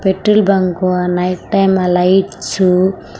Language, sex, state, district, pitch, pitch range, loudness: Telugu, female, Andhra Pradesh, Sri Satya Sai, 185 Hz, 180-195 Hz, -13 LUFS